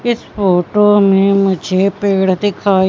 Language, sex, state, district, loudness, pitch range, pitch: Hindi, female, Madhya Pradesh, Katni, -13 LUFS, 190-205 Hz, 195 Hz